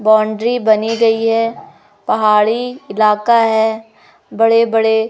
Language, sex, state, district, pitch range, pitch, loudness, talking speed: Hindi, female, Madhya Pradesh, Umaria, 215-230 Hz, 225 Hz, -14 LUFS, 105 wpm